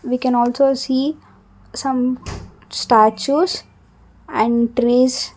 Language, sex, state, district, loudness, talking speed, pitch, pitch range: English, female, Karnataka, Bangalore, -18 LUFS, 90 wpm, 255 Hz, 240-270 Hz